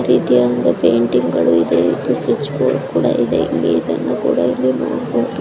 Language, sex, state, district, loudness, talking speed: Kannada, female, Karnataka, Gulbarga, -16 LUFS, 165 wpm